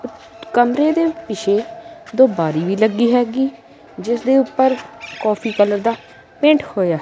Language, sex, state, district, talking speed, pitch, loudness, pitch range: Punjabi, male, Punjab, Kapurthala, 135 wpm, 240 Hz, -17 LUFS, 215-270 Hz